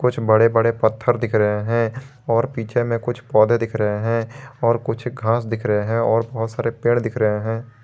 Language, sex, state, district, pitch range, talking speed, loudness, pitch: Hindi, male, Jharkhand, Garhwa, 110-120 Hz, 205 wpm, -20 LUFS, 115 Hz